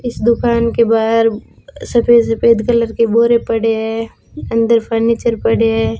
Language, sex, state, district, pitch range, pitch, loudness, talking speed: Hindi, female, Rajasthan, Bikaner, 225-235 Hz, 230 Hz, -14 LUFS, 150 wpm